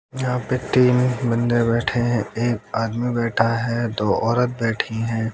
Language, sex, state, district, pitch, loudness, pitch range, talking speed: Hindi, male, Haryana, Jhajjar, 120 Hz, -21 LUFS, 115-125 Hz, 155 wpm